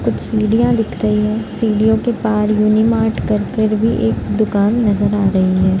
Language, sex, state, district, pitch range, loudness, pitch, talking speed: Hindi, female, Bihar, Madhepura, 190-220 Hz, -15 LUFS, 215 Hz, 185 wpm